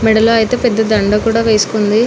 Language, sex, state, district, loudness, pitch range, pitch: Telugu, female, Telangana, Nalgonda, -12 LUFS, 215-230 Hz, 220 Hz